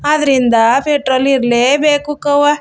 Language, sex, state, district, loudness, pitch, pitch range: Kannada, female, Karnataka, Chamarajanagar, -12 LUFS, 285 Hz, 260-295 Hz